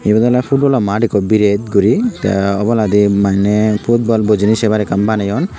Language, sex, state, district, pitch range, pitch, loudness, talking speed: Chakma, male, Tripura, Unakoti, 100-115 Hz, 105 Hz, -13 LUFS, 160 wpm